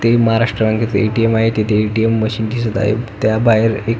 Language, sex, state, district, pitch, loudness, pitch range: Marathi, male, Maharashtra, Pune, 110 Hz, -15 LUFS, 110-115 Hz